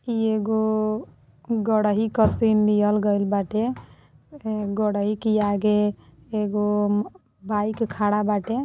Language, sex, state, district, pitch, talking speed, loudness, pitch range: Bhojpuri, female, Uttar Pradesh, Deoria, 210 Hz, 120 wpm, -23 LUFS, 205-220 Hz